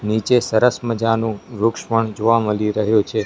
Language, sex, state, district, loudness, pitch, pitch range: Gujarati, male, Gujarat, Gandhinagar, -18 LUFS, 110 Hz, 105-115 Hz